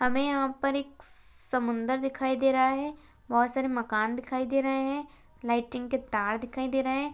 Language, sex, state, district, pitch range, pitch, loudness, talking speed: Hindi, female, Bihar, Kishanganj, 245-270 Hz, 265 Hz, -29 LUFS, 195 wpm